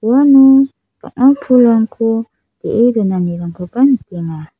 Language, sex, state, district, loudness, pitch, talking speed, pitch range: Garo, female, Meghalaya, South Garo Hills, -12 LUFS, 230 Hz, 80 wpm, 180-265 Hz